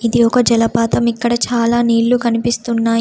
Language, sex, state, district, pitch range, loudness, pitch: Telugu, female, Telangana, Komaram Bheem, 230-240 Hz, -15 LUFS, 235 Hz